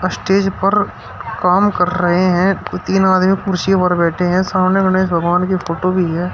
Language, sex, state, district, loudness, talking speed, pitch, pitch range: Hindi, male, Uttar Pradesh, Shamli, -15 LUFS, 180 wpm, 185 Hz, 175-190 Hz